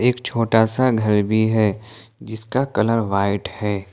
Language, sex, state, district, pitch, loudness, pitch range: Hindi, male, Jharkhand, Ranchi, 110 Hz, -19 LUFS, 105-115 Hz